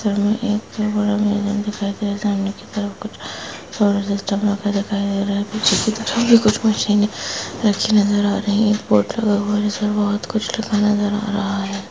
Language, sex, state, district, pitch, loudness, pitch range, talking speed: Hindi, female, Chhattisgarh, Sukma, 205 Hz, -19 LUFS, 200-210 Hz, 215 wpm